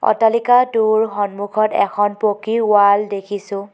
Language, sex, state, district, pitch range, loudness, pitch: Assamese, female, Assam, Kamrup Metropolitan, 205-225 Hz, -16 LUFS, 210 Hz